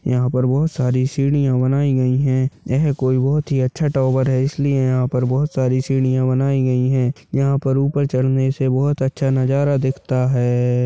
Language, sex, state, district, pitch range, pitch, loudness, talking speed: Hindi, male, Chhattisgarh, Balrampur, 130-140 Hz, 130 Hz, -18 LUFS, 190 wpm